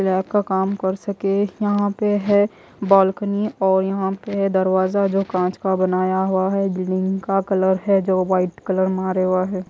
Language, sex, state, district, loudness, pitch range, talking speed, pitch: Hindi, female, Haryana, Jhajjar, -20 LUFS, 185-200 Hz, 185 wpm, 190 Hz